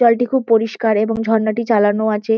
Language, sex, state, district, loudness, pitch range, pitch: Bengali, female, West Bengal, Kolkata, -16 LUFS, 215-230 Hz, 225 Hz